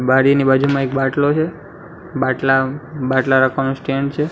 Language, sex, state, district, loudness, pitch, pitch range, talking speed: Gujarati, male, Gujarat, Gandhinagar, -17 LUFS, 135 Hz, 135-145 Hz, 140 wpm